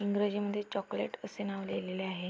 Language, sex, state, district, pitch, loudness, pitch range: Marathi, female, Maharashtra, Aurangabad, 200 Hz, -36 LUFS, 190-205 Hz